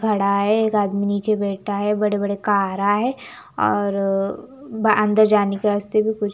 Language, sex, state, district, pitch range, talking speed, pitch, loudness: Hindi, female, Chandigarh, Chandigarh, 200-215 Hz, 190 wpm, 205 Hz, -20 LUFS